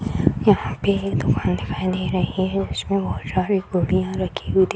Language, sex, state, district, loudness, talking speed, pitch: Hindi, female, Bihar, Madhepura, -22 LUFS, 190 wpm, 180 Hz